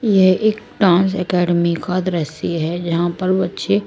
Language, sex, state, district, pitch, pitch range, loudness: Hindi, female, Punjab, Kapurthala, 180 Hz, 170-190 Hz, -17 LUFS